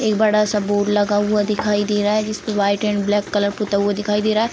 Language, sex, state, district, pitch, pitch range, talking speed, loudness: Hindi, female, Bihar, Sitamarhi, 210 Hz, 205-210 Hz, 280 wpm, -19 LUFS